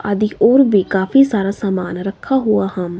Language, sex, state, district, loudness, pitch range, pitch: Hindi, female, Himachal Pradesh, Shimla, -15 LUFS, 190-215 Hz, 200 Hz